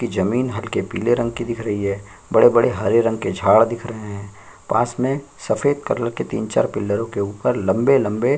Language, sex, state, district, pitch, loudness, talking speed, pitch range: Hindi, male, Chhattisgarh, Sukma, 115 Hz, -20 LUFS, 200 wpm, 105-120 Hz